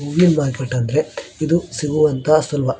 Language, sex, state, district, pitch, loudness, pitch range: Kannada, male, Karnataka, Dharwad, 150 Hz, -18 LUFS, 130-155 Hz